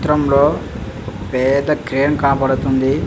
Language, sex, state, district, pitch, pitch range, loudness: Telugu, male, Andhra Pradesh, Visakhapatnam, 135 Hz, 115-140 Hz, -16 LUFS